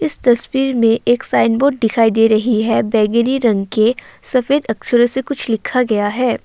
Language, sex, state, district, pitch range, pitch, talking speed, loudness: Hindi, female, Assam, Kamrup Metropolitan, 220-255 Hz, 235 Hz, 185 wpm, -15 LUFS